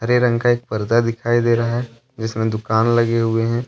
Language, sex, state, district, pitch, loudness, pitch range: Hindi, male, Jharkhand, Deoghar, 115 Hz, -18 LUFS, 115-120 Hz